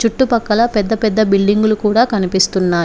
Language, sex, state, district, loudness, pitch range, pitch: Telugu, female, Telangana, Komaram Bheem, -14 LUFS, 195-230 Hz, 215 Hz